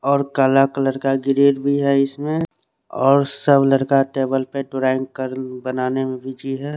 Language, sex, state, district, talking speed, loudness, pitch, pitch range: Hindi, male, Chandigarh, Chandigarh, 170 wpm, -19 LUFS, 135 Hz, 130-140 Hz